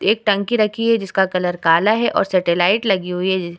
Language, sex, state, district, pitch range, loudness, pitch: Hindi, female, Bihar, Vaishali, 180-215 Hz, -17 LUFS, 190 Hz